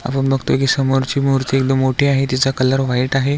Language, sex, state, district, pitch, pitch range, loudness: Marathi, male, Maharashtra, Aurangabad, 135 Hz, 130-135 Hz, -16 LUFS